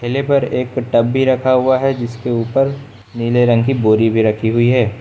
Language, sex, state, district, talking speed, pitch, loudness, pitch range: Hindi, male, Uttar Pradesh, Lucknow, 215 wpm, 120 Hz, -15 LUFS, 115-130 Hz